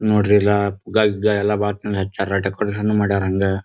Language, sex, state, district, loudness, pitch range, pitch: Kannada, male, Karnataka, Dharwad, -19 LUFS, 100-105 Hz, 100 Hz